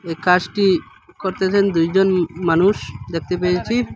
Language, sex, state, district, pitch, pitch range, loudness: Bengali, female, Assam, Hailakandi, 185 Hz, 175-195 Hz, -18 LUFS